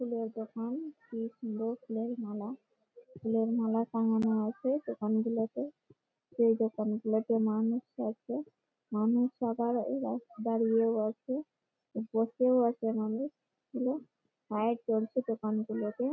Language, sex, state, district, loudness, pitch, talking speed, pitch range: Bengali, female, West Bengal, Malda, -33 LUFS, 230 Hz, 110 wpm, 220-250 Hz